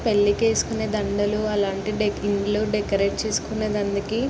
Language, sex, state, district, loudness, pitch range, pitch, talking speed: Telugu, female, Andhra Pradesh, Guntur, -23 LUFS, 205-215 Hz, 210 Hz, 100 wpm